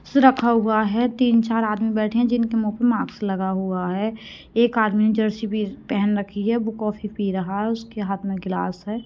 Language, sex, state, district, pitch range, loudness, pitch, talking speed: Hindi, female, Haryana, Rohtak, 205-230 Hz, -22 LUFS, 215 Hz, 210 wpm